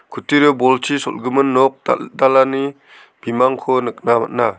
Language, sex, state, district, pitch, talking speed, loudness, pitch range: Garo, male, Meghalaya, South Garo Hills, 130 Hz, 105 wpm, -16 LUFS, 125-135 Hz